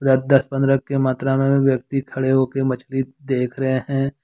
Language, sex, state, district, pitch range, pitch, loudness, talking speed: Hindi, male, Jharkhand, Deoghar, 130-135 Hz, 135 Hz, -20 LUFS, 170 wpm